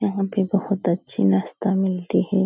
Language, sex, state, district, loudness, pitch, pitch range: Hindi, female, Bihar, Supaul, -22 LUFS, 195 Hz, 180-200 Hz